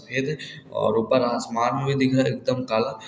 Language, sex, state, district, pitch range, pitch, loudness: Hindi, male, Uttar Pradesh, Varanasi, 115-135 Hz, 130 Hz, -24 LUFS